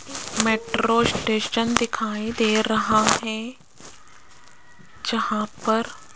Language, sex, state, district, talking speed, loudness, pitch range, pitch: Hindi, female, Rajasthan, Jaipur, 90 wpm, -22 LUFS, 220-230 Hz, 225 Hz